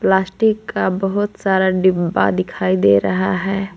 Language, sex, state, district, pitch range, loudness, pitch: Hindi, female, Jharkhand, Palamu, 180-195 Hz, -17 LUFS, 190 Hz